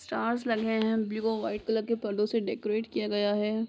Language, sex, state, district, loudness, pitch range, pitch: Hindi, female, Bihar, Sitamarhi, -30 LUFS, 210-225 Hz, 220 Hz